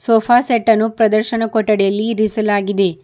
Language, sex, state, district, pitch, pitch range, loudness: Kannada, female, Karnataka, Bidar, 220 Hz, 210-230 Hz, -15 LUFS